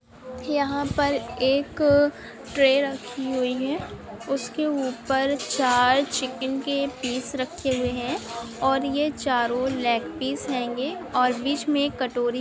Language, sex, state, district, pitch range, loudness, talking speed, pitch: Hindi, female, Maharashtra, Solapur, 250-280 Hz, -24 LUFS, 130 wpm, 265 Hz